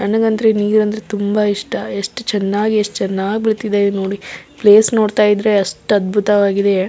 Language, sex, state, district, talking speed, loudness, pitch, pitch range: Kannada, female, Karnataka, Belgaum, 140 wpm, -15 LUFS, 205 Hz, 200-215 Hz